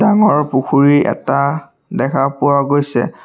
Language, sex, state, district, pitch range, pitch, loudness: Assamese, male, Assam, Sonitpur, 140-145 Hz, 140 Hz, -14 LUFS